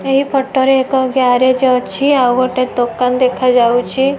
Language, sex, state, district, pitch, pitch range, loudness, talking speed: Odia, female, Odisha, Nuapada, 255 Hz, 250-265 Hz, -13 LUFS, 155 wpm